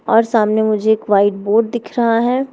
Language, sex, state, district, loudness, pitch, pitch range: Hindi, female, Uttar Pradesh, Shamli, -15 LUFS, 225 Hz, 215-235 Hz